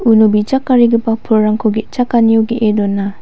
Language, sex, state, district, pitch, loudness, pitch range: Garo, female, Meghalaya, West Garo Hills, 225 Hz, -13 LUFS, 215-235 Hz